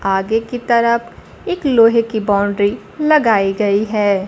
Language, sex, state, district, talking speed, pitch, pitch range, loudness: Hindi, female, Bihar, Kaimur, 140 wpm, 220 Hz, 200-235 Hz, -15 LUFS